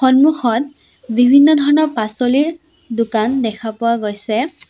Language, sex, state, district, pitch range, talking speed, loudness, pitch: Assamese, female, Assam, Sonitpur, 225-285 Hz, 100 wpm, -15 LUFS, 250 Hz